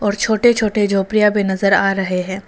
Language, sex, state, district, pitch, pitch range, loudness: Hindi, female, Arunachal Pradesh, Papum Pare, 200 Hz, 195-210 Hz, -16 LUFS